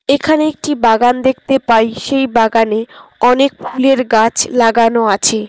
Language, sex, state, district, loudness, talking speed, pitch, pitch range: Bengali, female, West Bengal, Cooch Behar, -13 LUFS, 130 wpm, 245 Hz, 225-270 Hz